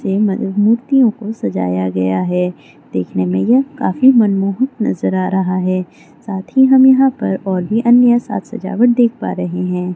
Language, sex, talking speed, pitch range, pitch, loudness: Maithili, female, 150 wpm, 180-240 Hz, 195 Hz, -15 LUFS